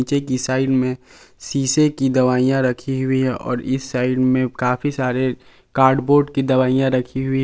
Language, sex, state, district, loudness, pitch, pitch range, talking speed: Hindi, male, Jharkhand, Palamu, -19 LUFS, 130 Hz, 125-135 Hz, 170 wpm